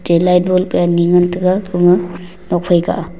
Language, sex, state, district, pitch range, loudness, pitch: Wancho, male, Arunachal Pradesh, Longding, 175-180 Hz, -14 LUFS, 180 Hz